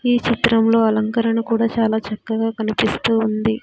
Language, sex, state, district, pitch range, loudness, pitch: Telugu, female, Andhra Pradesh, Sri Satya Sai, 220-230 Hz, -18 LUFS, 225 Hz